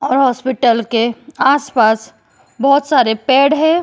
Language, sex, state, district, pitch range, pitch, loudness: Hindi, female, Uttar Pradesh, Jyotiba Phule Nagar, 230-280 Hz, 260 Hz, -14 LUFS